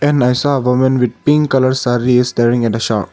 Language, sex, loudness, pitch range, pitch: English, male, -14 LUFS, 120-135 Hz, 125 Hz